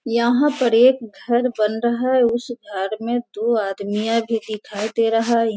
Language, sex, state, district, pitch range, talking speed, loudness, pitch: Hindi, female, Bihar, Sitamarhi, 215-240 Hz, 185 wpm, -20 LUFS, 230 Hz